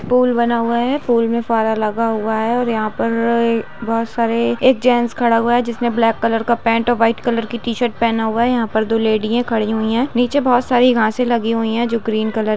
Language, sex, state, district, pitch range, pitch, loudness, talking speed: Hindi, female, Chhattisgarh, Bilaspur, 225-240 Hz, 230 Hz, -17 LUFS, 250 wpm